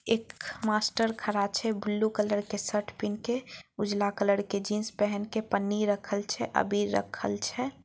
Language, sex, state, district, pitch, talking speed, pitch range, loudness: Maithili, female, Bihar, Samastipur, 210 Hz, 170 wpm, 200-215 Hz, -30 LUFS